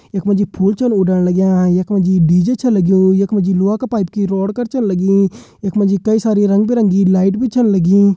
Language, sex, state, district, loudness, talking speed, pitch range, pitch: Hindi, male, Uttarakhand, Tehri Garhwal, -14 LUFS, 220 wpm, 190-210 Hz, 195 Hz